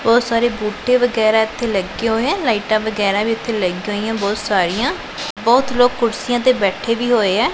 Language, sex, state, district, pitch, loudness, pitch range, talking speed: Punjabi, female, Punjab, Pathankot, 225 Hz, -17 LUFS, 210-240 Hz, 190 wpm